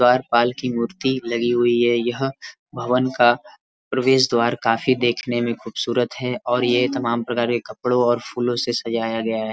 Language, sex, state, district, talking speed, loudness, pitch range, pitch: Hindi, male, Uttar Pradesh, Varanasi, 175 wpm, -20 LUFS, 120-125 Hz, 120 Hz